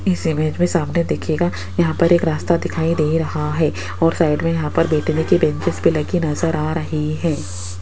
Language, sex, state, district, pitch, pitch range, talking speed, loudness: Hindi, female, Rajasthan, Jaipur, 160 Hz, 150-170 Hz, 200 wpm, -19 LUFS